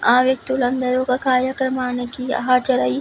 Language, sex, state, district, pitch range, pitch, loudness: Telugu, female, Andhra Pradesh, Visakhapatnam, 250-260 Hz, 255 Hz, -19 LUFS